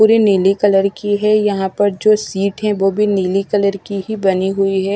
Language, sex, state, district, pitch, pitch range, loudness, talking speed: Hindi, female, Odisha, Malkangiri, 200 Hz, 195-210 Hz, -15 LUFS, 230 wpm